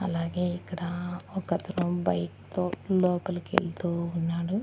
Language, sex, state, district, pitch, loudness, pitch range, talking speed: Telugu, female, Andhra Pradesh, Annamaya, 175 Hz, -30 LUFS, 170-180 Hz, 105 wpm